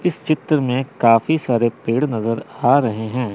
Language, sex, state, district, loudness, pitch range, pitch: Hindi, male, Chandigarh, Chandigarh, -18 LUFS, 115-145 Hz, 125 Hz